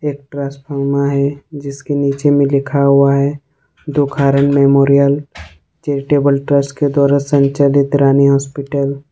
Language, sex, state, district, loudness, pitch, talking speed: Hindi, male, Jharkhand, Ranchi, -14 LUFS, 140 Hz, 125 wpm